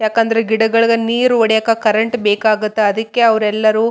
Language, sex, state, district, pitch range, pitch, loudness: Kannada, female, Karnataka, Raichur, 215-230 Hz, 225 Hz, -14 LUFS